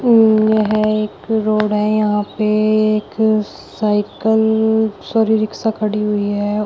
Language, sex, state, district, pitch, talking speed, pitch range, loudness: Hindi, female, Uttar Pradesh, Shamli, 215 Hz, 125 wpm, 210-220 Hz, -16 LUFS